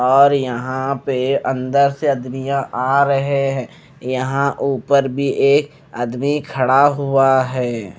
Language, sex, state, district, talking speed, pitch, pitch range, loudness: Hindi, male, Punjab, Fazilka, 135 wpm, 135 Hz, 130-140 Hz, -17 LUFS